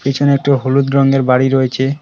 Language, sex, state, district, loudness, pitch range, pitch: Bengali, male, West Bengal, Cooch Behar, -13 LUFS, 130-140 Hz, 135 Hz